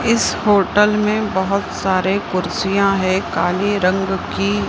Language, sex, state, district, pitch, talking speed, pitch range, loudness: Hindi, female, Maharashtra, Mumbai Suburban, 195 Hz, 130 wpm, 185-205 Hz, -17 LUFS